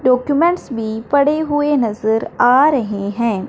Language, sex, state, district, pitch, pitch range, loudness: Hindi, male, Punjab, Fazilka, 250 Hz, 220-290 Hz, -16 LUFS